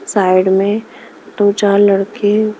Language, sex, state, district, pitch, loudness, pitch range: Hindi, female, Maharashtra, Mumbai Suburban, 205 Hz, -13 LUFS, 195-210 Hz